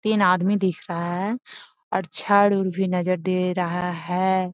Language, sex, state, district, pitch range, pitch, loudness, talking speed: Magahi, female, Bihar, Gaya, 180-200 Hz, 185 Hz, -23 LUFS, 185 wpm